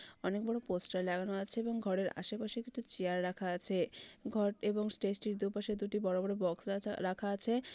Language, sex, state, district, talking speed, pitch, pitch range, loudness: Bengali, female, West Bengal, Malda, 185 wpm, 200 Hz, 185-215 Hz, -37 LUFS